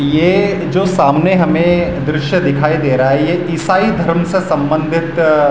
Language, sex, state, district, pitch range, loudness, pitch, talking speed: Hindi, male, Uttarakhand, Tehri Garhwal, 150-180 Hz, -13 LUFS, 165 Hz, 150 wpm